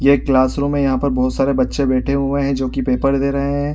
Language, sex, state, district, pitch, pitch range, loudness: Hindi, male, Chhattisgarh, Raigarh, 135 Hz, 130-140 Hz, -17 LUFS